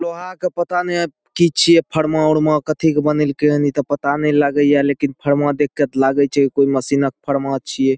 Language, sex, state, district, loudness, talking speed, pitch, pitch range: Maithili, male, Bihar, Saharsa, -17 LUFS, 235 wpm, 145 Hz, 140-155 Hz